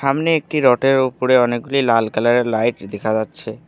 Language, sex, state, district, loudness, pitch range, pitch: Bengali, male, West Bengal, Alipurduar, -17 LUFS, 115-135 Hz, 125 Hz